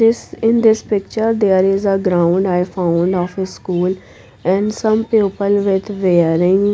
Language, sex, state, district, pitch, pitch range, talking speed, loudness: English, female, Punjab, Pathankot, 195 Hz, 180-210 Hz, 160 wpm, -16 LUFS